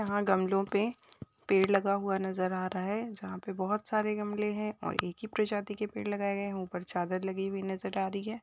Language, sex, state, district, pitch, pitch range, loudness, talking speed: Hindi, female, Maharashtra, Dhule, 200 Hz, 190-210 Hz, -33 LUFS, 230 wpm